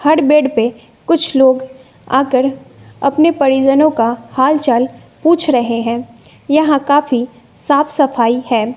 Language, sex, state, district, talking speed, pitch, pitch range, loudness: Hindi, female, Bihar, West Champaran, 130 wpm, 270 Hz, 240-295 Hz, -13 LUFS